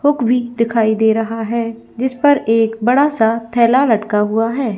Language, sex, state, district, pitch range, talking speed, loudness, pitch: Hindi, female, Chhattisgarh, Bilaspur, 225-250 Hz, 165 wpm, -15 LUFS, 230 Hz